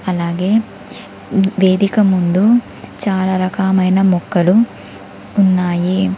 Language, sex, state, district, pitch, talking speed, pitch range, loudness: Telugu, female, Telangana, Komaram Bheem, 190 Hz, 70 wpm, 180-195 Hz, -15 LUFS